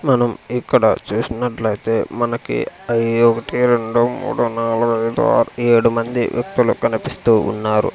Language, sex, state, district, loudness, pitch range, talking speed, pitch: Telugu, male, Andhra Pradesh, Sri Satya Sai, -18 LUFS, 115-120 Hz, 120 wpm, 115 Hz